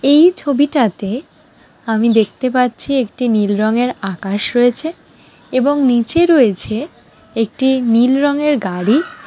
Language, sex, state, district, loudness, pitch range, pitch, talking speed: Bengali, female, West Bengal, Jalpaiguri, -15 LUFS, 220-280 Hz, 245 Hz, 110 wpm